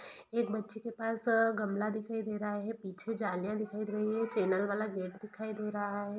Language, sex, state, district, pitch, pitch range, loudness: Hindi, female, Bihar, East Champaran, 215 Hz, 205-225 Hz, -35 LUFS